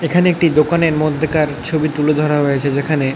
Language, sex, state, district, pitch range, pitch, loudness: Bengali, male, West Bengal, North 24 Parganas, 145-160 Hz, 155 Hz, -15 LUFS